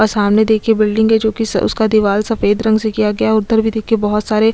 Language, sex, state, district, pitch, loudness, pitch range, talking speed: Hindi, female, Chhattisgarh, Kabirdham, 220 Hz, -14 LUFS, 215-220 Hz, 280 wpm